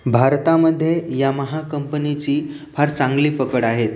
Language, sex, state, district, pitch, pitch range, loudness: Marathi, male, Maharashtra, Aurangabad, 145 Hz, 135-150 Hz, -19 LUFS